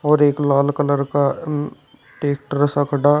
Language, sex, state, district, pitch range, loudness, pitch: Hindi, male, Uttar Pradesh, Shamli, 140-145 Hz, -19 LUFS, 145 Hz